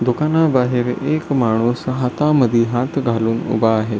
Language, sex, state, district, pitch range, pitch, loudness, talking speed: Marathi, male, Maharashtra, Solapur, 115-140 Hz, 125 Hz, -17 LUFS, 120 wpm